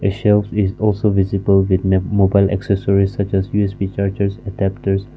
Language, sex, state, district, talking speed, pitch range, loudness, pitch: English, male, Nagaland, Kohima, 140 wpm, 95-100 Hz, -17 LUFS, 100 Hz